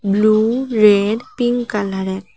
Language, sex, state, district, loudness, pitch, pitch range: Bengali, female, Assam, Hailakandi, -16 LUFS, 215 Hz, 200-240 Hz